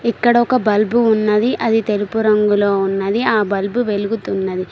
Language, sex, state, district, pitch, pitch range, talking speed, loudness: Telugu, female, Telangana, Mahabubabad, 215 Hz, 200-225 Hz, 140 wpm, -16 LUFS